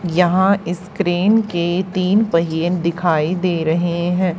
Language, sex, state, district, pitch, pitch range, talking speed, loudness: Hindi, female, Haryana, Charkhi Dadri, 175 Hz, 170-185 Hz, 135 wpm, -17 LUFS